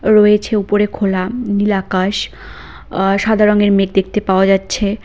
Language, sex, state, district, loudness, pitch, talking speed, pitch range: Bengali, female, West Bengal, Cooch Behar, -14 LUFS, 205 Hz, 140 wpm, 195-210 Hz